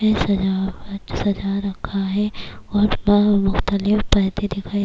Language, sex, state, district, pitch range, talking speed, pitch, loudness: Urdu, female, Bihar, Kishanganj, 195-205 Hz, 110 wpm, 200 Hz, -20 LUFS